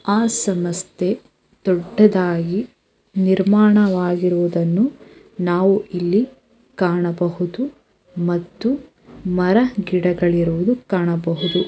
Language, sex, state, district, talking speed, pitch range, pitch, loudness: Kannada, female, Karnataka, Dharwad, 70 wpm, 175-210 Hz, 185 Hz, -19 LUFS